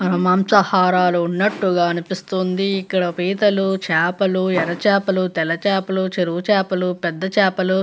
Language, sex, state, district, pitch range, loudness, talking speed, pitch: Telugu, female, Andhra Pradesh, Visakhapatnam, 180-195 Hz, -18 LUFS, 120 wpm, 185 Hz